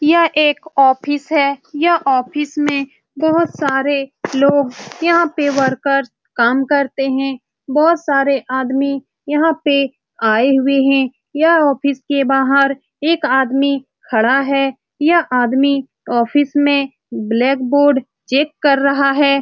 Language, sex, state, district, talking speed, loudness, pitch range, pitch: Hindi, female, Bihar, Saran, 135 wpm, -15 LUFS, 270-290 Hz, 275 Hz